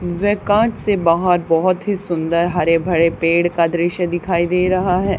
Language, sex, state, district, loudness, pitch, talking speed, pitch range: Hindi, female, Haryana, Charkhi Dadri, -17 LUFS, 175 Hz, 185 wpm, 170-185 Hz